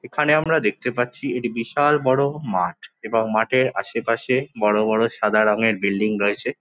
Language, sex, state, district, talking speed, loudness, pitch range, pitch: Bengali, male, West Bengal, Jhargram, 155 wpm, -21 LUFS, 110-130 Hz, 115 Hz